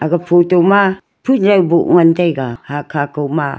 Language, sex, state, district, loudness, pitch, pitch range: Wancho, female, Arunachal Pradesh, Longding, -13 LUFS, 170 Hz, 145-185 Hz